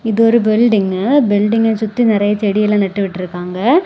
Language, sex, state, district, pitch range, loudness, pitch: Tamil, female, Tamil Nadu, Kanyakumari, 200-230 Hz, -14 LUFS, 215 Hz